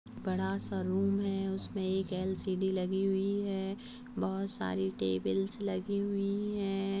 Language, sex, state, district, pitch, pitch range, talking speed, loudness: Hindi, female, Chhattisgarh, Rajnandgaon, 195 Hz, 190-200 Hz, 145 wpm, -34 LUFS